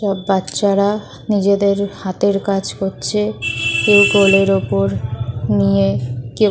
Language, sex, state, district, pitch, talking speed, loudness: Bengali, female, West Bengal, North 24 Parganas, 195 Hz, 110 wpm, -16 LUFS